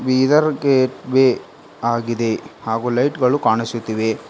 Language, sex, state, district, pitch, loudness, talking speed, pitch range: Kannada, female, Karnataka, Bidar, 120 Hz, -18 LUFS, 110 wpm, 115-130 Hz